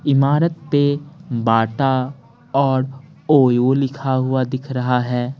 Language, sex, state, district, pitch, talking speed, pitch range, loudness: Hindi, male, Bihar, Patna, 135 Hz, 110 wpm, 125-145 Hz, -18 LUFS